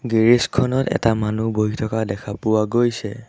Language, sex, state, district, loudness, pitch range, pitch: Assamese, male, Assam, Sonitpur, -20 LUFS, 105-120 Hz, 110 Hz